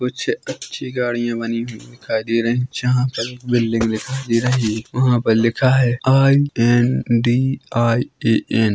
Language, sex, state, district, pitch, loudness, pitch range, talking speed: Hindi, male, Chhattisgarh, Korba, 120 Hz, -18 LUFS, 115-125 Hz, 155 wpm